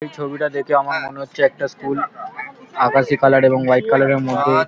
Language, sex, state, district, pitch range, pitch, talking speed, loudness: Bengali, male, West Bengal, Paschim Medinipur, 135-145 Hz, 140 Hz, 190 wpm, -17 LUFS